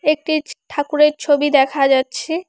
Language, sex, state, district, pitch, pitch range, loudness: Bengali, female, West Bengal, Alipurduar, 295 Hz, 275-300 Hz, -17 LUFS